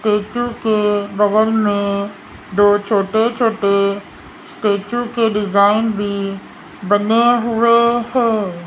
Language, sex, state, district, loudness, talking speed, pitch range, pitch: Hindi, female, Rajasthan, Jaipur, -16 LUFS, 95 wpm, 200-230 Hz, 210 Hz